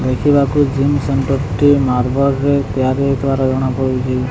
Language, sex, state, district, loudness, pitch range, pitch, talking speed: Odia, male, Odisha, Sambalpur, -15 LUFS, 130-140 Hz, 135 Hz, 125 wpm